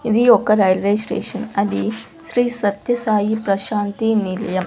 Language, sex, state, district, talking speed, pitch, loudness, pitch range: Telugu, female, Andhra Pradesh, Sri Satya Sai, 115 wpm, 210 Hz, -18 LUFS, 190-225 Hz